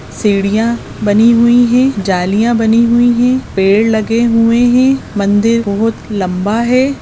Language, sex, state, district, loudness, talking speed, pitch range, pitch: Hindi, female, Goa, North and South Goa, -11 LUFS, 135 wpm, 205-240 Hz, 230 Hz